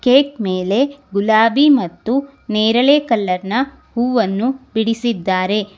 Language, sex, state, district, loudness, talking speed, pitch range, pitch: Kannada, female, Karnataka, Bangalore, -16 LUFS, 85 wpm, 205-265 Hz, 230 Hz